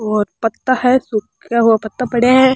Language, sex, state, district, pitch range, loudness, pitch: Rajasthani, female, Rajasthan, Churu, 220-255 Hz, -16 LUFS, 235 Hz